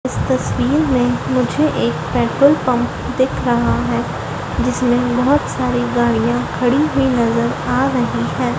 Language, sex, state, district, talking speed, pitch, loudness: Hindi, female, Madhya Pradesh, Dhar, 140 wpm, 245 Hz, -17 LUFS